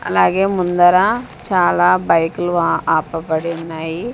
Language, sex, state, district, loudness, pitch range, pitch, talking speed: Telugu, female, Andhra Pradesh, Sri Satya Sai, -16 LUFS, 160-180 Hz, 165 Hz, 100 wpm